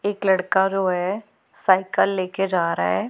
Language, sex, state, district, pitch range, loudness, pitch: Hindi, female, Punjab, Pathankot, 185-195 Hz, -21 LUFS, 190 Hz